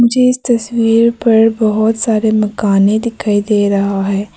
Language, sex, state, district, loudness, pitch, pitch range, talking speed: Hindi, female, Arunachal Pradesh, Papum Pare, -13 LUFS, 220 Hz, 205-230 Hz, 150 wpm